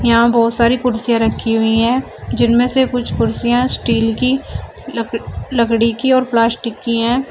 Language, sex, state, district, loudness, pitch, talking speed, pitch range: Hindi, female, Uttar Pradesh, Shamli, -15 LUFS, 235 Hz, 165 wpm, 230-250 Hz